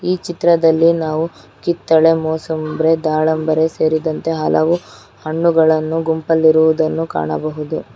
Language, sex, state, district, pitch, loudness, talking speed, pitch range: Kannada, female, Karnataka, Bangalore, 160 Hz, -16 LUFS, 85 wpm, 155-165 Hz